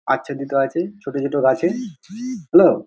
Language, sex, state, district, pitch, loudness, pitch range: Bengali, male, West Bengal, Dakshin Dinajpur, 165 Hz, -20 LUFS, 140-185 Hz